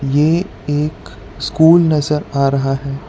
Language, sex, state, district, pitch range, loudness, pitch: Hindi, male, Gujarat, Valsad, 135-150 Hz, -15 LUFS, 145 Hz